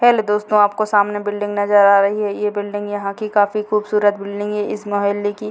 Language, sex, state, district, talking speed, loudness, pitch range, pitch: Hindi, female, Bihar, Purnia, 215 wpm, -18 LUFS, 205-210 Hz, 205 Hz